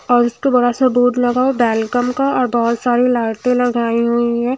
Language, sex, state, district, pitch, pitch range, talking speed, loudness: Hindi, female, Himachal Pradesh, Shimla, 245 Hz, 235-250 Hz, 210 wpm, -15 LUFS